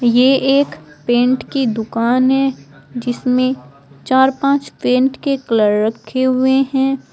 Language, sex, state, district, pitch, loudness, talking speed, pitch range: Hindi, female, Uttar Pradesh, Shamli, 255 Hz, -16 LUFS, 125 wpm, 230-270 Hz